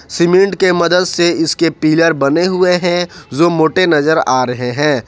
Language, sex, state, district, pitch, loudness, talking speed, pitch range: Hindi, male, Jharkhand, Ranchi, 165 Hz, -13 LUFS, 175 wpm, 150-175 Hz